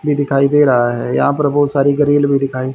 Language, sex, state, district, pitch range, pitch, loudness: Hindi, male, Haryana, Rohtak, 135-145 Hz, 140 Hz, -14 LUFS